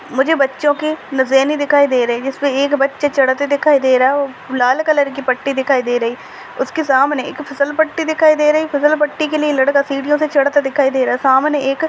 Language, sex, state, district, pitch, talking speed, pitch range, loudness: Hindi, female, Maharashtra, Dhule, 280 Hz, 215 wpm, 265-300 Hz, -15 LUFS